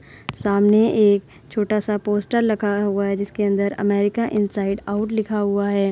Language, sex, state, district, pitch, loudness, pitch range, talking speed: Hindi, female, Uttar Pradesh, Hamirpur, 205 Hz, -20 LUFS, 200-210 Hz, 150 wpm